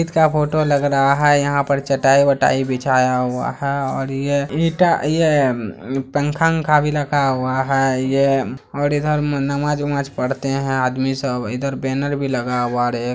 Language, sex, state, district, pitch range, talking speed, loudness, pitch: Hindi, male, Bihar, Araria, 130-145 Hz, 175 wpm, -18 LUFS, 140 Hz